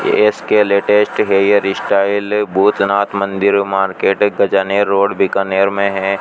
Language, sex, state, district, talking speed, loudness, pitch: Hindi, male, Rajasthan, Bikaner, 115 wpm, -14 LUFS, 100 Hz